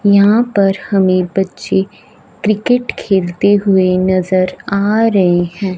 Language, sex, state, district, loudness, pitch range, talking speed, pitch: Hindi, female, Punjab, Fazilka, -13 LUFS, 185-205 Hz, 115 wpm, 195 Hz